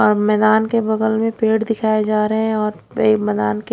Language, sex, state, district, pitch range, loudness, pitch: Hindi, female, Odisha, Khordha, 210-220 Hz, -17 LUFS, 215 Hz